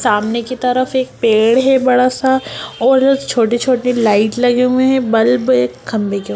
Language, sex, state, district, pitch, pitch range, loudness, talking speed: Hindi, female, Bihar, Lakhisarai, 250 Hz, 225-260 Hz, -14 LUFS, 190 wpm